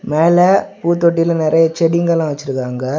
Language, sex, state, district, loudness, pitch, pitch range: Tamil, male, Tamil Nadu, Kanyakumari, -14 LUFS, 165 Hz, 155-170 Hz